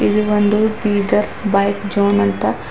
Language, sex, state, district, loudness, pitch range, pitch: Kannada, female, Karnataka, Bidar, -16 LUFS, 200-210 Hz, 205 Hz